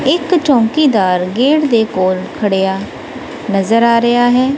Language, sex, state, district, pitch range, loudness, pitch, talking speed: Punjabi, female, Punjab, Kapurthala, 195-285 Hz, -13 LUFS, 235 Hz, 130 wpm